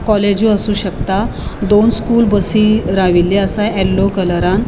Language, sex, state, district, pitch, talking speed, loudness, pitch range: Konkani, female, Goa, North and South Goa, 200 Hz, 140 wpm, -13 LUFS, 190-215 Hz